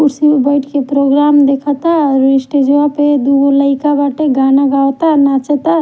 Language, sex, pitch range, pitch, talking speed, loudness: Bhojpuri, female, 275-290 Hz, 280 Hz, 175 wpm, -11 LUFS